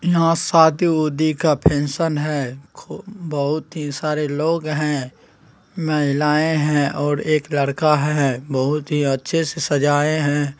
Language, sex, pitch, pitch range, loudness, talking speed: Hindi, male, 150 Hz, 145-160 Hz, -19 LUFS, 125 wpm